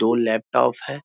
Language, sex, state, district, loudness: Hindi, male, Bihar, Muzaffarpur, -21 LUFS